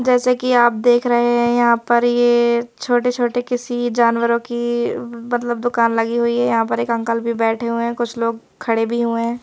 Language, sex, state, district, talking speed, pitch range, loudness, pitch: Hindi, female, Madhya Pradesh, Bhopal, 205 wpm, 235-240 Hz, -18 LUFS, 240 Hz